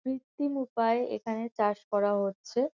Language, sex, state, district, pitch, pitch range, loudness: Bengali, female, West Bengal, Kolkata, 230 Hz, 210-260 Hz, -30 LUFS